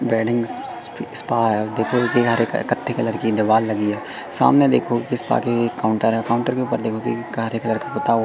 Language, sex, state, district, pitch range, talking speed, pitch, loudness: Hindi, female, Madhya Pradesh, Katni, 110-120 Hz, 210 wpm, 115 Hz, -20 LUFS